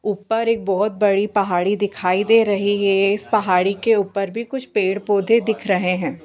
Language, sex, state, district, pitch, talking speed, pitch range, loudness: Hindi, female, Bihar, Bhagalpur, 205 Hz, 180 wpm, 195-220 Hz, -19 LUFS